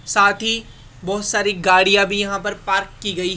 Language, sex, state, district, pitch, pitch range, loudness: Hindi, male, Rajasthan, Jaipur, 200 Hz, 185-205 Hz, -18 LUFS